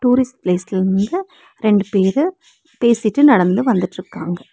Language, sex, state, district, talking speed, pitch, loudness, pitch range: Tamil, female, Tamil Nadu, Nilgiris, 95 wpm, 225 Hz, -17 LUFS, 190-290 Hz